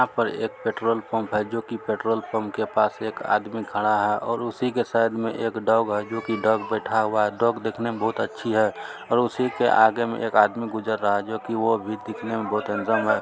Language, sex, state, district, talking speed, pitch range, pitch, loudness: Hindi, male, Bihar, Supaul, 255 wpm, 110-115 Hz, 110 Hz, -24 LUFS